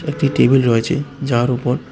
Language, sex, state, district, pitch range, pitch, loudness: Bengali, male, Tripura, West Tripura, 125-145 Hz, 135 Hz, -16 LUFS